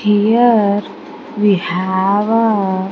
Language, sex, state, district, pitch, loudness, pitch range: English, female, Andhra Pradesh, Sri Satya Sai, 205 Hz, -14 LUFS, 190-220 Hz